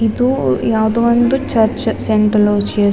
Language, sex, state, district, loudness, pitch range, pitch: Kannada, female, Karnataka, Dakshina Kannada, -14 LUFS, 210-235 Hz, 220 Hz